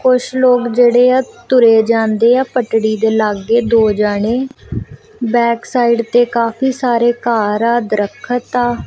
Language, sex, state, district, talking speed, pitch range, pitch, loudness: Punjabi, female, Punjab, Kapurthala, 140 wpm, 225-245 Hz, 235 Hz, -13 LUFS